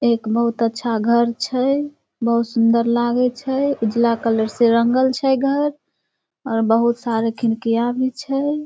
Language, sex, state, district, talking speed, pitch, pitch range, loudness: Maithili, female, Bihar, Samastipur, 145 wpm, 235 Hz, 230-265 Hz, -19 LUFS